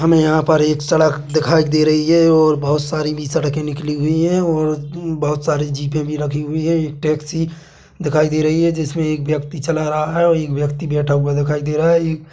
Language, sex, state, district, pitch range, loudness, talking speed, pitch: Hindi, male, Chhattisgarh, Bilaspur, 150-160 Hz, -17 LUFS, 220 wpm, 155 Hz